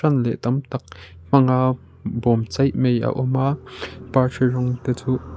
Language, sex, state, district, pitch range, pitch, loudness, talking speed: Mizo, male, Mizoram, Aizawl, 120-130 Hz, 130 Hz, -21 LUFS, 135 wpm